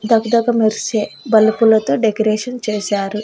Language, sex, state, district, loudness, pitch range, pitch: Telugu, female, Andhra Pradesh, Annamaya, -16 LUFS, 215-230 Hz, 220 Hz